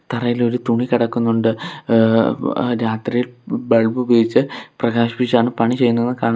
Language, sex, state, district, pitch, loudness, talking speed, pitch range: Malayalam, male, Kerala, Kollam, 120 Hz, -18 LUFS, 115 wpm, 115-120 Hz